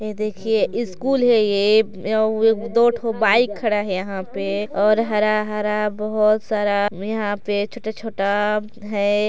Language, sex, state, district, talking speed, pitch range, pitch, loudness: Hindi, female, Chhattisgarh, Sarguja, 150 wpm, 205-220 Hz, 215 Hz, -20 LUFS